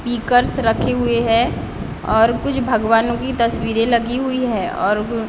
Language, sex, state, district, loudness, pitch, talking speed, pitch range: Hindi, female, Maharashtra, Gondia, -17 LUFS, 235 Hz, 135 wpm, 225-245 Hz